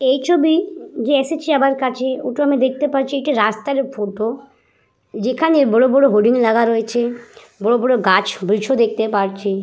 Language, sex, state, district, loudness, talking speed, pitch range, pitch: Bengali, female, West Bengal, Purulia, -17 LUFS, 145 wpm, 220-280 Hz, 255 Hz